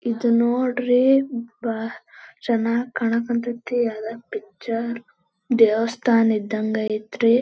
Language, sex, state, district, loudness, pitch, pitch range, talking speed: Kannada, female, Karnataka, Belgaum, -22 LUFS, 235 Hz, 225-240 Hz, 90 wpm